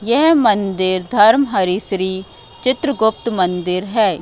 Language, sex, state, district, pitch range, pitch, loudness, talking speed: Hindi, female, Madhya Pradesh, Katni, 185-235 Hz, 205 Hz, -16 LUFS, 100 wpm